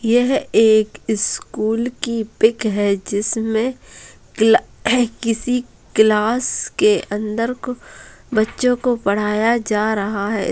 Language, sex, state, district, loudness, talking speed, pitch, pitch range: Hindi, female, Bihar, Purnia, -18 LUFS, 110 wpm, 225 Hz, 215-245 Hz